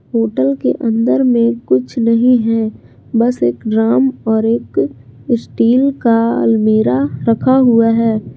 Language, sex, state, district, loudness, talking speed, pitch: Hindi, female, Jharkhand, Garhwa, -14 LUFS, 130 wpm, 225 Hz